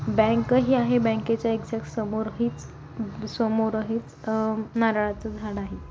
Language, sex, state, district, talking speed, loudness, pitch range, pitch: Marathi, female, Maharashtra, Pune, 130 wpm, -26 LUFS, 220-230 Hz, 220 Hz